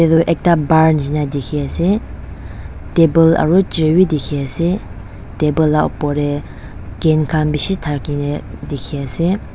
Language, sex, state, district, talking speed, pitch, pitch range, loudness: Nagamese, female, Nagaland, Dimapur, 140 wpm, 150 Hz, 140-165 Hz, -16 LUFS